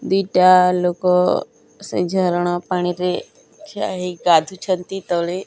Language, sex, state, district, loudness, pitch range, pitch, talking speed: Odia, male, Odisha, Nuapada, -18 LUFS, 180-190 Hz, 180 Hz, 130 wpm